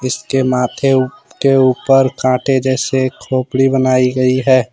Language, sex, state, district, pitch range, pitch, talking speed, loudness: Hindi, male, Jharkhand, Ranchi, 130-135 Hz, 130 Hz, 125 wpm, -14 LUFS